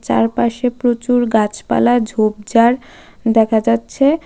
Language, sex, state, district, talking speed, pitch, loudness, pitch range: Bengali, female, Tripura, West Tripura, 100 wpm, 230 Hz, -15 LUFS, 220-245 Hz